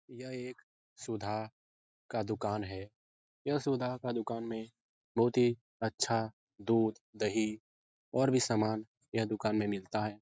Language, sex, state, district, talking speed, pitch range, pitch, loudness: Hindi, male, Bihar, Jahanabad, 140 wpm, 105-120 Hz, 110 Hz, -35 LUFS